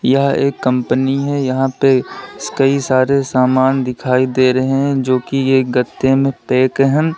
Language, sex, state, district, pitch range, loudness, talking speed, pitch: Hindi, male, Uttar Pradesh, Lalitpur, 130-135 Hz, -15 LUFS, 175 wpm, 135 Hz